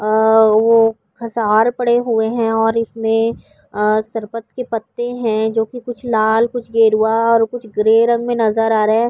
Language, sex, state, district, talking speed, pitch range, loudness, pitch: Urdu, female, Uttar Pradesh, Budaun, 170 wpm, 220-235 Hz, -16 LUFS, 225 Hz